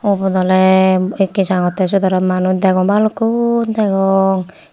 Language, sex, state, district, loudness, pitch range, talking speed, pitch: Chakma, female, Tripura, Unakoti, -14 LUFS, 185-200 Hz, 125 wpm, 190 Hz